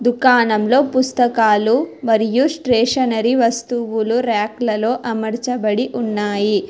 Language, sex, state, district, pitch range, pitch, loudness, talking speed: Telugu, female, Telangana, Hyderabad, 220-250 Hz, 235 Hz, -17 LUFS, 70 wpm